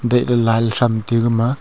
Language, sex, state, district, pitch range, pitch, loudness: Wancho, male, Arunachal Pradesh, Longding, 115-120 Hz, 115 Hz, -17 LUFS